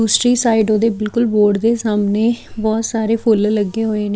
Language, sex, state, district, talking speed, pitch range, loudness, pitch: Punjabi, female, Chandigarh, Chandigarh, 200 wpm, 210-230 Hz, -16 LUFS, 220 Hz